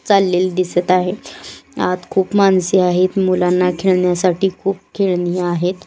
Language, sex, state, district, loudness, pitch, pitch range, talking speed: Marathi, female, Maharashtra, Pune, -16 LUFS, 185 Hz, 180-190 Hz, 125 wpm